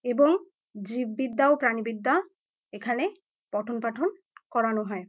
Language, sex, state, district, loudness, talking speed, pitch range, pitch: Bengali, female, West Bengal, North 24 Parganas, -27 LUFS, 105 wpm, 225-360 Hz, 250 Hz